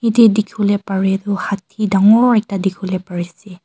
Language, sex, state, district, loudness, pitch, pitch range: Nagamese, female, Nagaland, Kohima, -16 LUFS, 200 Hz, 190-210 Hz